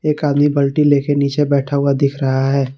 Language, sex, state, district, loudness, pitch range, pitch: Hindi, male, Jharkhand, Palamu, -15 LUFS, 140-145 Hz, 140 Hz